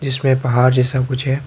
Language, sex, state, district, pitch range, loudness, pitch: Hindi, male, Tripura, Dhalai, 130-135 Hz, -16 LUFS, 130 Hz